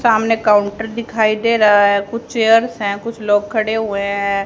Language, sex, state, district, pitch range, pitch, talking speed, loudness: Hindi, female, Haryana, Rohtak, 205-225 Hz, 220 Hz, 190 wpm, -16 LUFS